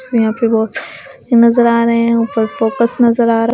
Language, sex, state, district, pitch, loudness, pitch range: Hindi, female, Bihar, West Champaran, 235 Hz, -13 LUFS, 225-235 Hz